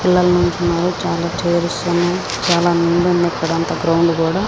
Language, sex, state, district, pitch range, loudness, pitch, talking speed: Telugu, female, Andhra Pradesh, Srikakulam, 170-175 Hz, -16 LUFS, 175 Hz, 135 wpm